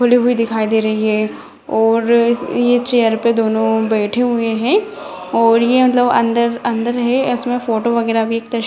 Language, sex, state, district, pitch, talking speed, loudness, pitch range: Hindi, female, Bihar, Jamui, 235 Hz, 185 wpm, -15 LUFS, 225-245 Hz